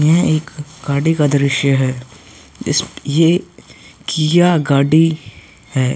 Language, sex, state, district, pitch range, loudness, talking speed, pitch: Hindi, male, Uttar Pradesh, Hamirpur, 125-155 Hz, -15 LUFS, 110 wpm, 140 Hz